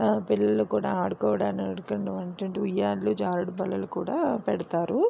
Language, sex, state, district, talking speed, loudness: Telugu, female, Andhra Pradesh, Visakhapatnam, 80 wpm, -27 LUFS